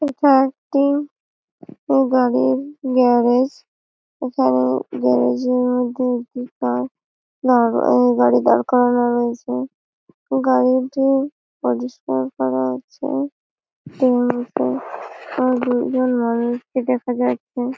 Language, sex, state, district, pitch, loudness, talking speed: Bengali, female, West Bengal, Malda, 245 Hz, -19 LUFS, 55 wpm